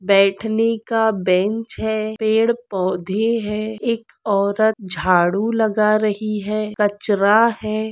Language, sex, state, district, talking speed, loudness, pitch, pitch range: Hindi, female, Maharashtra, Aurangabad, 105 wpm, -19 LUFS, 215 Hz, 200-220 Hz